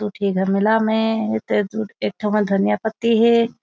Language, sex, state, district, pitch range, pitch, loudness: Chhattisgarhi, female, Chhattisgarh, Raigarh, 205-225 Hz, 220 Hz, -19 LUFS